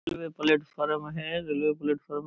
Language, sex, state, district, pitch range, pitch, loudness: Hindi, male, Bihar, Purnia, 150-155 Hz, 150 Hz, -29 LUFS